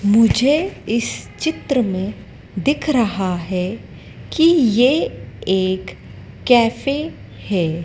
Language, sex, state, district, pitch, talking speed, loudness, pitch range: Hindi, female, Madhya Pradesh, Dhar, 225 Hz, 90 wpm, -18 LUFS, 190-280 Hz